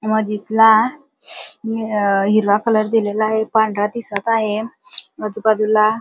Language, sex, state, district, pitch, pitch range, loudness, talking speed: Marathi, female, Maharashtra, Dhule, 220 Hz, 215-225 Hz, -17 LUFS, 90 wpm